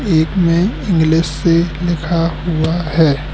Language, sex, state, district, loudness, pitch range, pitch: Hindi, male, Madhya Pradesh, Katni, -15 LUFS, 160-170 Hz, 165 Hz